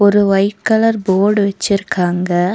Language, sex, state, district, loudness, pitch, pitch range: Tamil, female, Tamil Nadu, Nilgiris, -14 LUFS, 200 Hz, 190-210 Hz